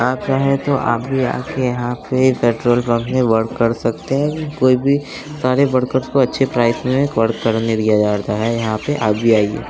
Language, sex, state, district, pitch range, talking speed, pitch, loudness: Hindi, male, Bihar, West Champaran, 115-135 Hz, 210 wpm, 125 Hz, -17 LUFS